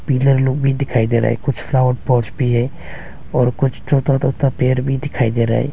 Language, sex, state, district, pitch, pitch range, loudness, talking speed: Hindi, male, Arunachal Pradesh, Longding, 130 Hz, 120-135 Hz, -17 LUFS, 230 wpm